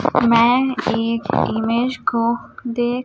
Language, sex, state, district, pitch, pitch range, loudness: Hindi, male, Chhattisgarh, Raipur, 240 Hz, 230-245 Hz, -18 LUFS